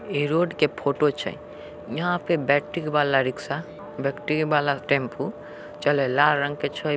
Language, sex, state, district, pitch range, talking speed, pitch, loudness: Angika, male, Bihar, Samastipur, 140-155 Hz, 155 wpm, 150 Hz, -24 LUFS